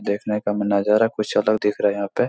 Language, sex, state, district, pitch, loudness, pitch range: Hindi, male, Bihar, Supaul, 105 Hz, -21 LUFS, 100-105 Hz